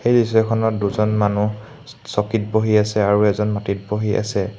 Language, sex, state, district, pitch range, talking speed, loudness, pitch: Assamese, male, Assam, Hailakandi, 105-110 Hz, 155 wpm, -19 LUFS, 105 Hz